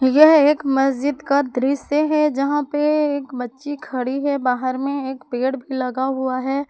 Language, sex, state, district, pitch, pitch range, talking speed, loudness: Hindi, female, Jharkhand, Palamu, 275 Hz, 260-290 Hz, 180 wpm, -19 LUFS